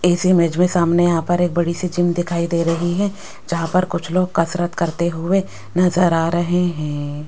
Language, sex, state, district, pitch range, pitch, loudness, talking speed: Hindi, female, Rajasthan, Jaipur, 170-180 Hz, 175 Hz, -18 LUFS, 205 wpm